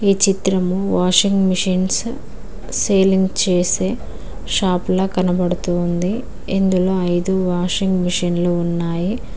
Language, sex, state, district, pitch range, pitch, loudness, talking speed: Telugu, female, Telangana, Mahabubabad, 180-195 Hz, 185 Hz, -18 LUFS, 75 wpm